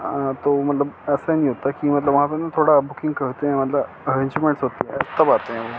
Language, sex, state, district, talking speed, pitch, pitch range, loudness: Hindi, male, Chandigarh, Chandigarh, 230 wpm, 140 Hz, 135-145 Hz, -20 LUFS